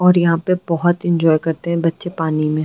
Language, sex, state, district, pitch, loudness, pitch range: Hindi, female, Uttar Pradesh, Gorakhpur, 165 Hz, -17 LUFS, 165-175 Hz